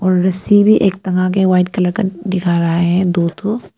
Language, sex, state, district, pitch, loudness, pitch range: Hindi, female, Arunachal Pradesh, Papum Pare, 185 Hz, -14 LUFS, 180-195 Hz